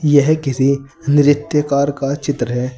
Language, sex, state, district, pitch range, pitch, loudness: Hindi, male, Uttar Pradesh, Saharanpur, 135-145 Hz, 140 Hz, -16 LUFS